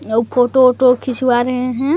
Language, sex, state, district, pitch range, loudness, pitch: Hindi, female, Chhattisgarh, Balrampur, 245-255 Hz, -14 LUFS, 250 Hz